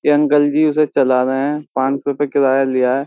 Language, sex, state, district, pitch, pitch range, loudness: Hindi, male, Uttar Pradesh, Jyotiba Phule Nagar, 140 Hz, 130-145 Hz, -16 LUFS